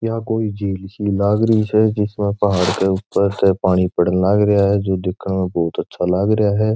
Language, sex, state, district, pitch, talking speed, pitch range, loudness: Marwari, male, Rajasthan, Churu, 100 Hz, 220 wpm, 95-105 Hz, -18 LUFS